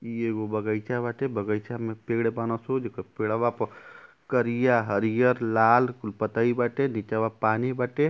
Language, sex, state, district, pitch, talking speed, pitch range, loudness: Bhojpuri, male, Uttar Pradesh, Ghazipur, 115 Hz, 155 wpm, 110-125 Hz, -26 LUFS